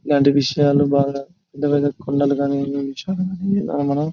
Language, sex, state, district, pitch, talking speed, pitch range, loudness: Telugu, male, Andhra Pradesh, Chittoor, 145 Hz, 115 wpm, 140-155 Hz, -19 LUFS